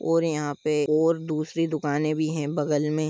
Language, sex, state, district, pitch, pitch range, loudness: Hindi, male, Jharkhand, Jamtara, 155 Hz, 150-160 Hz, -25 LUFS